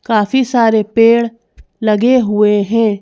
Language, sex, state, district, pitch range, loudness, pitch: Hindi, female, Madhya Pradesh, Bhopal, 210-235 Hz, -13 LUFS, 225 Hz